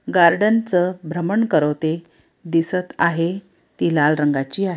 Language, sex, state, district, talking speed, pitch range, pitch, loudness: Marathi, female, Maharashtra, Pune, 125 wpm, 160-185 Hz, 170 Hz, -19 LUFS